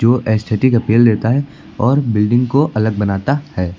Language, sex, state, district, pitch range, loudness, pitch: Hindi, male, Uttar Pradesh, Lucknow, 110-130 Hz, -15 LUFS, 115 Hz